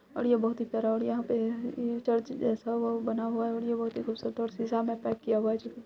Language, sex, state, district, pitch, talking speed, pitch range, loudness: Hindi, female, Bihar, Araria, 230 Hz, 245 wpm, 230-235 Hz, -31 LUFS